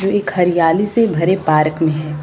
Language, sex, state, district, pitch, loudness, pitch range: Hindi, female, Uttar Pradesh, Lucknow, 170 Hz, -15 LUFS, 155-195 Hz